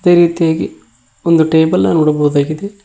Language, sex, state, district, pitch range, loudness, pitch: Kannada, male, Karnataka, Koppal, 150-170 Hz, -13 LUFS, 160 Hz